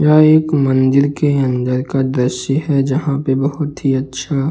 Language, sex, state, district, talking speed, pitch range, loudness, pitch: Hindi, male, Uttar Pradesh, Jalaun, 185 wpm, 135-150 Hz, -15 LUFS, 140 Hz